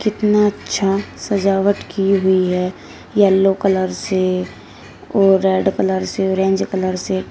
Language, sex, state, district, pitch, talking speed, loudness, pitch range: Hindi, female, Uttar Pradesh, Shamli, 195 Hz, 130 wpm, -17 LUFS, 190-200 Hz